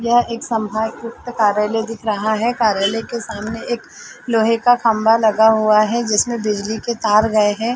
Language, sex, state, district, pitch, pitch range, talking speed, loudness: Hindi, female, Chhattisgarh, Bilaspur, 225 Hz, 215-235 Hz, 180 wpm, -17 LUFS